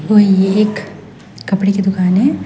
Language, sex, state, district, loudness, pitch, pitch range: Hindi, female, Meghalaya, West Garo Hills, -13 LUFS, 195 Hz, 190-210 Hz